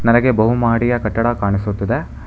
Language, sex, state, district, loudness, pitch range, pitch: Kannada, male, Karnataka, Bangalore, -17 LUFS, 100-120 Hz, 115 Hz